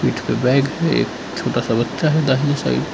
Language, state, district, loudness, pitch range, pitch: Hindi, Arunachal Pradesh, Lower Dibang Valley, -19 LUFS, 125-155 Hz, 135 Hz